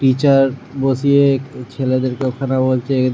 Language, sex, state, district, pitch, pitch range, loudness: Bengali, male, West Bengal, Jhargram, 130 Hz, 130-135 Hz, -16 LUFS